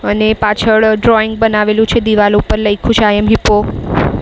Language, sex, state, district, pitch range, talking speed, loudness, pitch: Gujarati, female, Maharashtra, Mumbai Suburban, 210-220 Hz, 185 wpm, -11 LUFS, 215 Hz